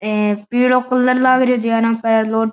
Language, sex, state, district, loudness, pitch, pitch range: Marwari, male, Rajasthan, Churu, -15 LUFS, 230 Hz, 220-250 Hz